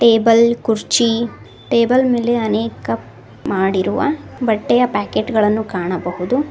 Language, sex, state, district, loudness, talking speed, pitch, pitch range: Kannada, female, Karnataka, Koppal, -17 LUFS, 90 wpm, 225 Hz, 190-235 Hz